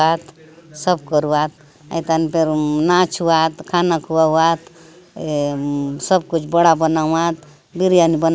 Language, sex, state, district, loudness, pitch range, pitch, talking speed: Halbi, female, Chhattisgarh, Bastar, -17 LUFS, 155-170 Hz, 160 Hz, 145 wpm